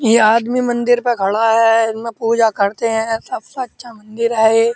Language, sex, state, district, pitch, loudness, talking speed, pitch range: Hindi, male, Uttar Pradesh, Muzaffarnagar, 225 Hz, -15 LUFS, 190 wpm, 225-235 Hz